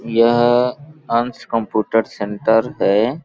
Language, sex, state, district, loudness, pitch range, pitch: Hindi, male, Chhattisgarh, Balrampur, -17 LUFS, 110-125 Hz, 115 Hz